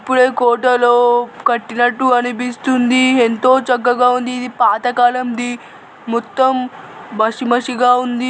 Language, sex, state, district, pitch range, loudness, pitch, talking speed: Telugu, male, Telangana, Nalgonda, 240-255 Hz, -15 LUFS, 245 Hz, 95 wpm